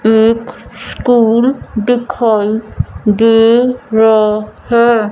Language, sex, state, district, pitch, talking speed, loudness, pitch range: Hindi, female, Punjab, Fazilka, 225 Hz, 70 wpm, -12 LUFS, 220-240 Hz